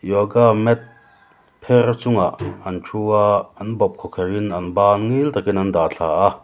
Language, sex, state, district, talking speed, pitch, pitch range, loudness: Mizo, male, Mizoram, Aizawl, 175 wpm, 105 Hz, 95-115 Hz, -18 LUFS